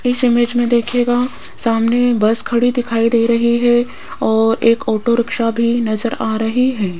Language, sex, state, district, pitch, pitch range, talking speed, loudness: Hindi, female, Rajasthan, Jaipur, 235 Hz, 230-240 Hz, 170 wpm, -15 LUFS